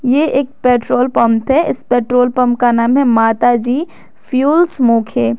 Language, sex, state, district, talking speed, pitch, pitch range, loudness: Hindi, female, Jharkhand, Garhwa, 165 wpm, 250 Hz, 235-265 Hz, -13 LUFS